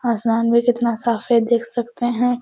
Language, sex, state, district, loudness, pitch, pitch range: Hindi, female, Bihar, Supaul, -19 LUFS, 235 Hz, 230-240 Hz